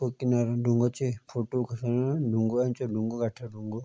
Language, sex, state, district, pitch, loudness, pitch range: Garhwali, male, Uttarakhand, Tehri Garhwal, 120 Hz, -29 LUFS, 115-125 Hz